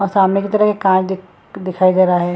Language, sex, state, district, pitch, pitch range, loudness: Hindi, female, Chhattisgarh, Bilaspur, 190 Hz, 185-195 Hz, -15 LUFS